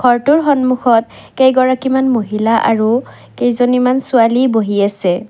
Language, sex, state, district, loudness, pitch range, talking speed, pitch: Assamese, female, Assam, Kamrup Metropolitan, -13 LUFS, 225-260 Hz, 125 wpm, 245 Hz